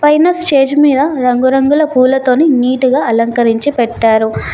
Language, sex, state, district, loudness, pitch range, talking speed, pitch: Telugu, female, Telangana, Mahabubabad, -11 LUFS, 245-290 Hz, 105 wpm, 265 Hz